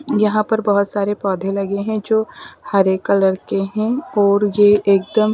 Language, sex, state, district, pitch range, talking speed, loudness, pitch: Hindi, female, Delhi, New Delhi, 195-215 Hz, 180 wpm, -17 LUFS, 205 Hz